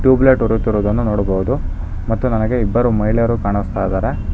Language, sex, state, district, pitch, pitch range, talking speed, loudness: Kannada, male, Karnataka, Bangalore, 110 Hz, 100-120 Hz, 140 wpm, -17 LUFS